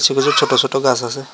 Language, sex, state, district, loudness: Bengali, male, Tripura, West Tripura, -15 LUFS